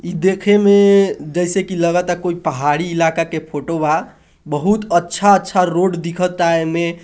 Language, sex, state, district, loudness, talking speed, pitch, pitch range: Hindi, male, Bihar, East Champaran, -16 LUFS, 160 wpm, 175 Hz, 165-190 Hz